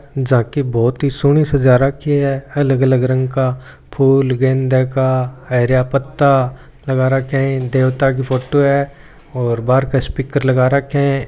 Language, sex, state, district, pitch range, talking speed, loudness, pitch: Marwari, male, Rajasthan, Churu, 130-140 Hz, 160 wpm, -15 LUFS, 135 Hz